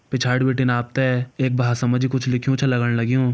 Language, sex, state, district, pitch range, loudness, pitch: Hindi, male, Uttarakhand, Uttarkashi, 125-130 Hz, -20 LUFS, 125 Hz